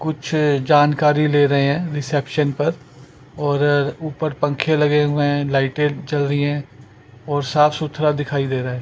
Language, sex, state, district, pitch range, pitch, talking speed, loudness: Hindi, male, Chandigarh, Chandigarh, 140-150 Hz, 145 Hz, 165 wpm, -19 LUFS